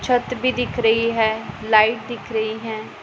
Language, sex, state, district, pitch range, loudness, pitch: Hindi, female, Punjab, Pathankot, 220-240 Hz, -20 LUFS, 225 Hz